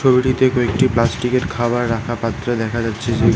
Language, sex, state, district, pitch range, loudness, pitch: Bengali, male, West Bengal, Alipurduar, 115-125 Hz, -18 LUFS, 120 Hz